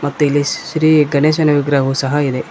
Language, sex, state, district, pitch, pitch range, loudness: Kannada, male, Karnataka, Koppal, 145 Hz, 140-150 Hz, -14 LUFS